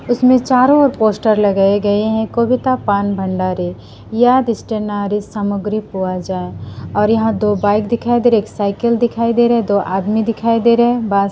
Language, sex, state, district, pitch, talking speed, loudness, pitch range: Hindi, female, Assam, Sonitpur, 215 Hz, 175 wpm, -15 LUFS, 200-235 Hz